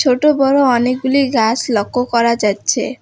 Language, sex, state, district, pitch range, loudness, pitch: Bengali, female, West Bengal, Alipurduar, 235-270 Hz, -14 LUFS, 250 Hz